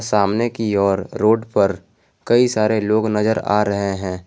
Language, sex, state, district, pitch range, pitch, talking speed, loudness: Hindi, male, Jharkhand, Garhwa, 100-110 Hz, 105 Hz, 170 wpm, -18 LUFS